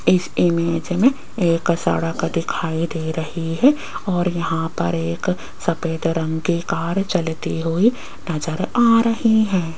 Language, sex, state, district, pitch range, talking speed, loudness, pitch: Hindi, female, Rajasthan, Jaipur, 165-190 Hz, 140 wpm, -20 LUFS, 170 Hz